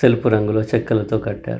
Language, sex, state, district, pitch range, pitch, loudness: Telugu, male, Telangana, Karimnagar, 105-115 Hz, 110 Hz, -19 LUFS